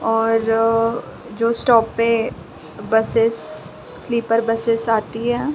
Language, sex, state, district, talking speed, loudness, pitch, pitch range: Hindi, female, Gujarat, Gandhinagar, 95 wpm, -19 LUFS, 225 Hz, 220-230 Hz